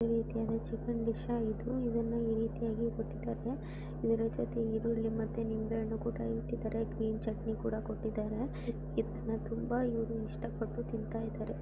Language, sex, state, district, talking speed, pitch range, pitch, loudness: Kannada, female, Karnataka, Mysore, 140 wpm, 220-230 Hz, 225 Hz, -36 LUFS